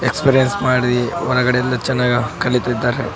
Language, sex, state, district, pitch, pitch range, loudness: Kannada, male, Karnataka, Raichur, 125 Hz, 120-130 Hz, -17 LUFS